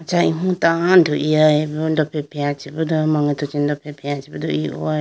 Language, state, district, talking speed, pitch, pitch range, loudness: Idu Mishmi, Arunachal Pradesh, Lower Dibang Valley, 155 wpm, 150 Hz, 145-160 Hz, -19 LUFS